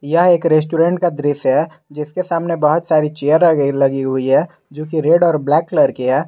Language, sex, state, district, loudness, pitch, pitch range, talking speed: Hindi, male, Jharkhand, Garhwa, -15 LUFS, 155 Hz, 145-165 Hz, 220 wpm